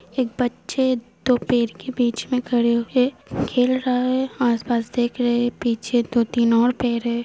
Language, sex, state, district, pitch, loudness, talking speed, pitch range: Hindi, female, Uttar Pradesh, Hamirpur, 240 Hz, -21 LUFS, 175 wpm, 235-255 Hz